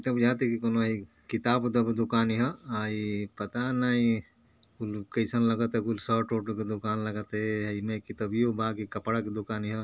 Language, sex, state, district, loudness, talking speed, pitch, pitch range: Bhojpuri, male, Uttar Pradesh, Ghazipur, -30 LUFS, 200 wpm, 115 Hz, 105-115 Hz